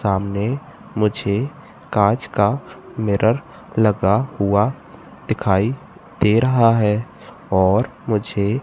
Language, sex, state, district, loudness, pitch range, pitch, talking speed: Hindi, male, Madhya Pradesh, Katni, -19 LUFS, 100-120 Hz, 110 Hz, 90 wpm